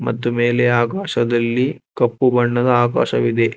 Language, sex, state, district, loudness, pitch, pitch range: Kannada, male, Karnataka, Bangalore, -17 LUFS, 120 Hz, 120-125 Hz